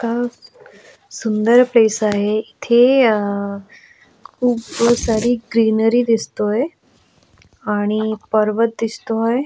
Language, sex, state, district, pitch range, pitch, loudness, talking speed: Marathi, female, Goa, North and South Goa, 215-240 Hz, 230 Hz, -17 LUFS, 80 wpm